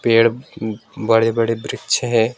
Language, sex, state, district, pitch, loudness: Hindi, male, West Bengal, Alipurduar, 115 Hz, -18 LUFS